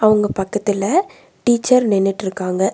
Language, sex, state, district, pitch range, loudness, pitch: Tamil, female, Tamil Nadu, Nilgiris, 195-235 Hz, -17 LUFS, 210 Hz